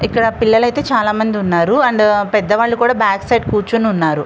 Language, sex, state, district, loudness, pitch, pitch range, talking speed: Telugu, female, Andhra Pradesh, Visakhapatnam, -14 LUFS, 220 Hz, 205-235 Hz, 170 wpm